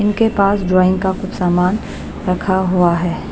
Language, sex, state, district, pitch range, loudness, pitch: Hindi, female, Chhattisgarh, Raipur, 180-200 Hz, -16 LUFS, 185 Hz